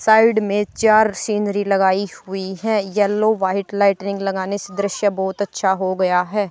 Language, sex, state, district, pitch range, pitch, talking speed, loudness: Hindi, female, Haryana, Charkhi Dadri, 190-210 Hz, 200 Hz, 175 wpm, -19 LUFS